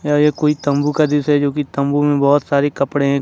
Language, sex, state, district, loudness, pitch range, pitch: Hindi, male, Jharkhand, Ranchi, -16 LUFS, 140-150 Hz, 145 Hz